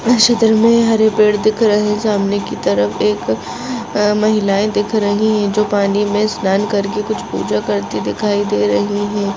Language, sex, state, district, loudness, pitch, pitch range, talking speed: Hindi, female, Goa, North and South Goa, -15 LUFS, 210 Hz, 200-215 Hz, 175 wpm